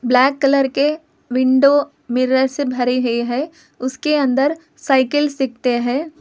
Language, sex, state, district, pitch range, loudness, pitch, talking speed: Hindi, female, Telangana, Hyderabad, 255-290 Hz, -17 LUFS, 270 Hz, 135 wpm